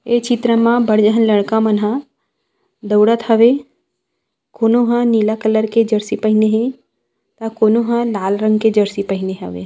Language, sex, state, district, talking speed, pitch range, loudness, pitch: Chhattisgarhi, female, Chhattisgarh, Rajnandgaon, 160 wpm, 215-235 Hz, -15 LUFS, 220 Hz